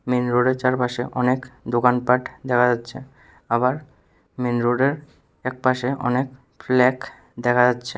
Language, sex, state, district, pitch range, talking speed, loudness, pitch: Bengali, male, Tripura, West Tripura, 120-130 Hz, 115 wpm, -21 LUFS, 125 Hz